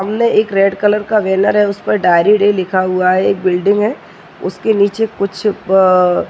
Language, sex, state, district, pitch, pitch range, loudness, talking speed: Hindi, male, Uttar Pradesh, Jyotiba Phule Nagar, 200 Hz, 190-210 Hz, -13 LUFS, 200 wpm